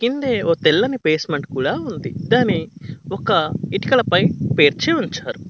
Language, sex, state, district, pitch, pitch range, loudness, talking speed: Telugu, male, Telangana, Mahabubabad, 170 Hz, 155-245 Hz, -18 LUFS, 130 wpm